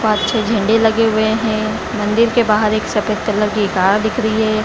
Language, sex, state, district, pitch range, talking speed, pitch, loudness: Hindi, female, Bihar, Lakhisarai, 210-220 Hz, 220 wpm, 215 Hz, -15 LUFS